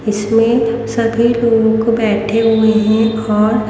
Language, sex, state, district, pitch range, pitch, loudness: Hindi, female, Haryana, Rohtak, 220-230 Hz, 225 Hz, -13 LUFS